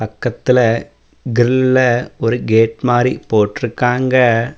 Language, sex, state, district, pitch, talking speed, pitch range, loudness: Tamil, male, Tamil Nadu, Namakkal, 120 Hz, 80 wpm, 115-125 Hz, -15 LUFS